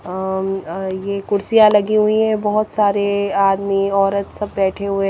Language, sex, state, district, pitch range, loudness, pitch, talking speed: Hindi, female, Chandigarh, Chandigarh, 195-210 Hz, -17 LUFS, 200 Hz, 175 wpm